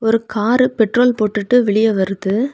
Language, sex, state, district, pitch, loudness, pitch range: Tamil, female, Tamil Nadu, Kanyakumari, 225 Hz, -16 LUFS, 210-245 Hz